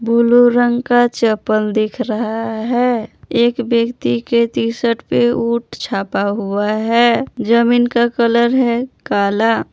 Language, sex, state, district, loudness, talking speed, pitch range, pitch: Hindi, female, Jharkhand, Palamu, -15 LUFS, 130 wpm, 220-240 Hz, 235 Hz